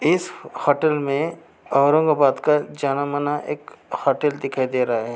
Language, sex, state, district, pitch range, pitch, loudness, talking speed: Hindi, male, Maharashtra, Aurangabad, 135-150 Hz, 145 Hz, -21 LUFS, 140 wpm